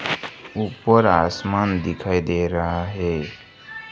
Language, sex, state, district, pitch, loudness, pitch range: Hindi, male, Gujarat, Gandhinagar, 90 Hz, -21 LUFS, 85-110 Hz